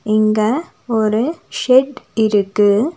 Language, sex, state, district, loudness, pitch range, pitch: Tamil, female, Tamil Nadu, Nilgiris, -16 LUFS, 215-260 Hz, 220 Hz